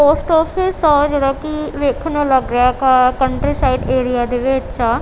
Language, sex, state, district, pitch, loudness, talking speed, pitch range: Punjabi, female, Punjab, Kapurthala, 275 Hz, -15 LUFS, 190 wpm, 255-300 Hz